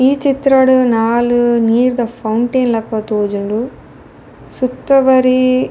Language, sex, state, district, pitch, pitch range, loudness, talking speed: Tulu, female, Karnataka, Dakshina Kannada, 245 Hz, 225-260 Hz, -13 LUFS, 105 wpm